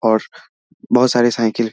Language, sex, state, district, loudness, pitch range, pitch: Hindi, male, Bihar, Muzaffarpur, -16 LUFS, 110-120 Hz, 115 Hz